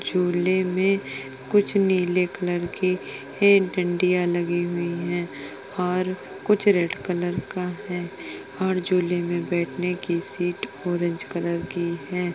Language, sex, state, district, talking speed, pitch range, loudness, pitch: Hindi, female, Uttar Pradesh, Etah, 130 wpm, 175-185 Hz, -24 LUFS, 180 Hz